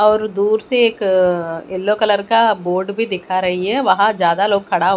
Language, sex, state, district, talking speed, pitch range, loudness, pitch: Hindi, female, Odisha, Khordha, 215 wpm, 185-215 Hz, -16 LUFS, 200 Hz